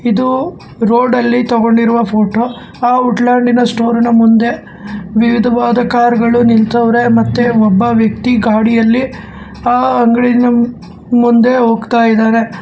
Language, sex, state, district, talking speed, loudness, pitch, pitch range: Kannada, male, Karnataka, Bangalore, 105 wpm, -11 LUFS, 235 Hz, 225-240 Hz